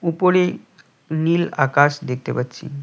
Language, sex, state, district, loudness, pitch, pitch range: Bengali, male, West Bengal, Cooch Behar, -19 LUFS, 155 Hz, 135-170 Hz